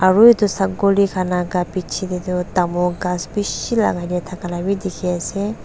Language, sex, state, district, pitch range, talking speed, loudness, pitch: Nagamese, female, Nagaland, Dimapur, 180-200 Hz, 160 wpm, -19 LUFS, 185 Hz